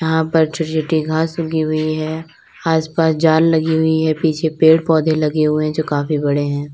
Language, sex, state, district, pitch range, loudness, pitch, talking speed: Hindi, female, Uttar Pradesh, Lalitpur, 155-160 Hz, -16 LUFS, 160 Hz, 195 wpm